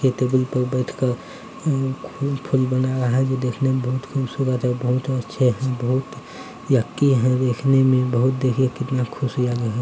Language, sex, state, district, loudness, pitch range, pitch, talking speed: Hindi, male, Bihar, Bhagalpur, -21 LUFS, 125-130 Hz, 130 Hz, 120 wpm